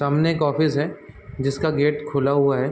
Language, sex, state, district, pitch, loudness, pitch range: Hindi, male, Chhattisgarh, Raigarh, 145 Hz, -21 LUFS, 140-150 Hz